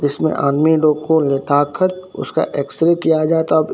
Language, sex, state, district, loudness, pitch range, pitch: Hindi, male, Bihar, Katihar, -16 LUFS, 145-165 Hz, 160 Hz